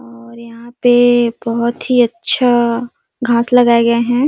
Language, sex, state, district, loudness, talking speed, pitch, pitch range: Hindi, female, Chhattisgarh, Sarguja, -13 LUFS, 140 wpm, 240 Hz, 235-245 Hz